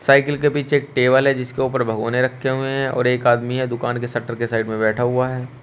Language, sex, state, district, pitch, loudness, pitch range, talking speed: Hindi, male, Uttar Pradesh, Shamli, 125 Hz, -19 LUFS, 120-135 Hz, 265 wpm